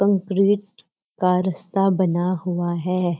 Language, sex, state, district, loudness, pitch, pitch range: Hindi, female, Uttarakhand, Uttarkashi, -21 LUFS, 185 Hz, 180-195 Hz